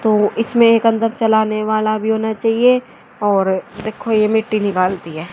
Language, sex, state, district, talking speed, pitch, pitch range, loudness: Hindi, female, Haryana, Charkhi Dadri, 170 wpm, 220 Hz, 210-225 Hz, -16 LUFS